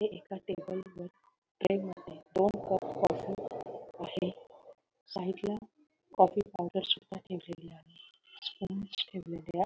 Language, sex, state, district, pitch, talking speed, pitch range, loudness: Marathi, female, Maharashtra, Solapur, 190 Hz, 120 wpm, 180-200 Hz, -34 LUFS